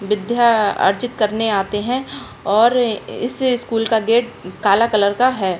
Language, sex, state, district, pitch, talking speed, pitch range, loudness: Hindi, female, Uttar Pradesh, Budaun, 225 Hz, 150 wpm, 205-240 Hz, -17 LUFS